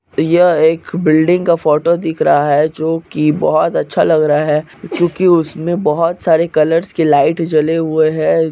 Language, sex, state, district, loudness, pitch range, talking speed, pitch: Hindi, male, Chhattisgarh, Bastar, -13 LUFS, 155-170 Hz, 175 wpm, 160 Hz